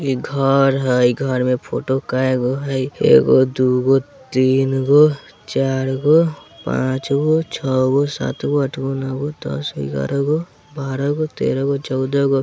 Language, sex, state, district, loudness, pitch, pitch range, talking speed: Bajjika, male, Bihar, Vaishali, -18 LUFS, 135 Hz, 130-140 Hz, 120 wpm